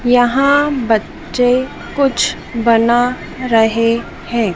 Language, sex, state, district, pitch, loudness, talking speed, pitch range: Hindi, female, Madhya Pradesh, Dhar, 240 Hz, -15 LUFS, 80 wpm, 230-255 Hz